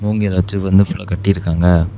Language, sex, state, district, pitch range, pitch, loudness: Tamil, male, Tamil Nadu, Namakkal, 90-100 Hz, 95 Hz, -16 LUFS